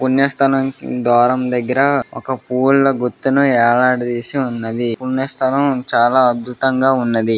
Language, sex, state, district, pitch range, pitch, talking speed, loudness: Telugu, male, Andhra Pradesh, Srikakulam, 120-135 Hz, 130 Hz, 130 wpm, -16 LUFS